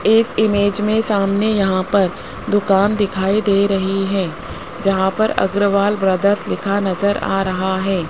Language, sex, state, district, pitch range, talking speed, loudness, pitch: Hindi, male, Rajasthan, Jaipur, 190-205 Hz, 150 wpm, -17 LUFS, 200 Hz